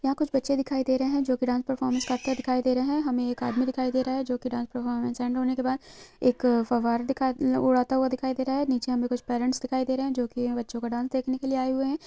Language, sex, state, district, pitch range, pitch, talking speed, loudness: Hindi, female, Chhattisgarh, Sukma, 245-265 Hz, 255 Hz, 280 wpm, -27 LUFS